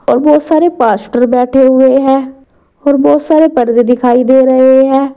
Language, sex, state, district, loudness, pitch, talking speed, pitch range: Hindi, female, Uttar Pradesh, Saharanpur, -9 LUFS, 265 Hz, 175 wpm, 250-280 Hz